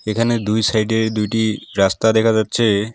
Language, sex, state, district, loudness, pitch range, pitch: Bengali, male, West Bengal, Alipurduar, -17 LUFS, 105-110 Hz, 110 Hz